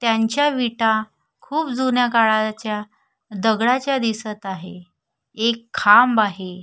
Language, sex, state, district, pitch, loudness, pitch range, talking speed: Marathi, female, Maharashtra, Sindhudurg, 225 Hz, -19 LUFS, 210-245 Hz, 100 wpm